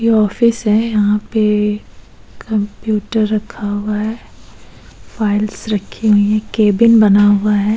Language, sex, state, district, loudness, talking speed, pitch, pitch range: Hindi, female, Goa, North and South Goa, -15 LUFS, 130 wpm, 210 Hz, 210-220 Hz